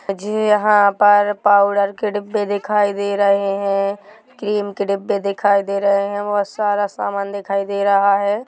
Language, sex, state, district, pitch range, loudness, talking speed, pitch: Hindi, male, Chhattisgarh, Rajnandgaon, 200-205 Hz, -17 LUFS, 165 wpm, 200 Hz